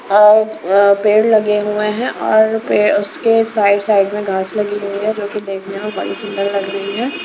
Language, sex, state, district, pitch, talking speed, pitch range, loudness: Hindi, female, Himachal Pradesh, Shimla, 210 Hz, 190 wpm, 200-215 Hz, -15 LUFS